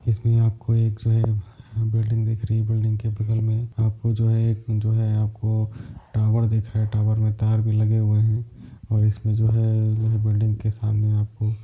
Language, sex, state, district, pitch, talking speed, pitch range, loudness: Hindi, male, Jharkhand, Jamtara, 110 Hz, 210 wpm, 110-115 Hz, -22 LUFS